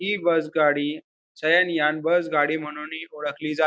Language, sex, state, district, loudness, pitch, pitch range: Marathi, male, Maharashtra, Pune, -23 LUFS, 155 Hz, 150-165 Hz